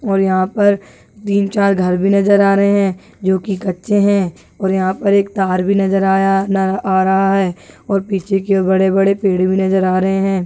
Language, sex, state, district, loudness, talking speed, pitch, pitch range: Hindi, female, Rajasthan, Churu, -15 LUFS, 205 wpm, 195 Hz, 190-200 Hz